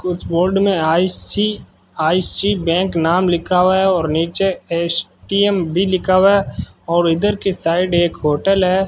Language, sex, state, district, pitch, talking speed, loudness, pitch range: Hindi, male, Rajasthan, Bikaner, 185 Hz, 155 wpm, -16 LUFS, 170-195 Hz